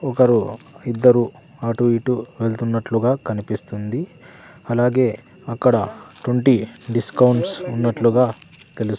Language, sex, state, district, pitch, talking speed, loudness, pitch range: Telugu, male, Andhra Pradesh, Sri Satya Sai, 120 Hz, 80 wpm, -20 LUFS, 115-130 Hz